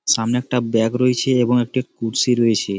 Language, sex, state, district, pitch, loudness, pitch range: Bengali, male, West Bengal, Malda, 125 Hz, -18 LUFS, 115-125 Hz